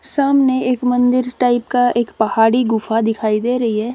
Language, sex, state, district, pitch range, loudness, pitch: Hindi, female, Haryana, Rohtak, 225-250 Hz, -16 LUFS, 245 Hz